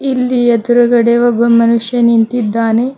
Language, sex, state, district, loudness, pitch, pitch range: Kannada, female, Karnataka, Bidar, -11 LUFS, 235 Hz, 230-240 Hz